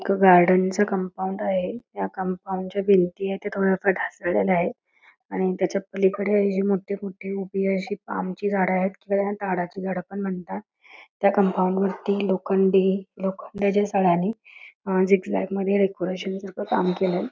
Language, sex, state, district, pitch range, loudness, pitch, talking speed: Marathi, female, Karnataka, Belgaum, 185-200 Hz, -24 LUFS, 195 Hz, 125 wpm